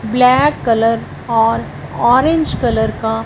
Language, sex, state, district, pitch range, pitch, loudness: Hindi, female, Punjab, Fazilka, 225-250 Hz, 230 Hz, -14 LUFS